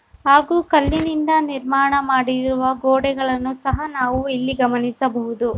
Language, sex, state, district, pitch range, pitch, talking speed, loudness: Kannada, female, Karnataka, Bellary, 255-280 Hz, 265 Hz, 95 wpm, -18 LUFS